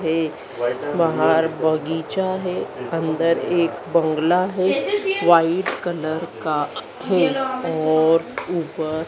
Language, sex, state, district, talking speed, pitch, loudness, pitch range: Hindi, female, Madhya Pradesh, Dhar, 100 wpm, 165 Hz, -21 LUFS, 160-180 Hz